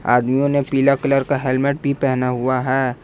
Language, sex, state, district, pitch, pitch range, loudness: Hindi, male, Jharkhand, Ranchi, 135 Hz, 130-140 Hz, -18 LUFS